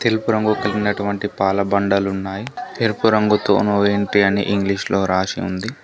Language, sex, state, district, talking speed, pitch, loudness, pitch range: Telugu, male, Telangana, Komaram Bheem, 145 wpm, 100 Hz, -19 LUFS, 100-110 Hz